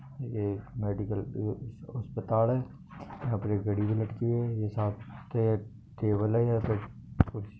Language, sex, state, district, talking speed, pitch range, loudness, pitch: Marwari, male, Rajasthan, Nagaur, 125 wpm, 105-115 Hz, -31 LUFS, 110 Hz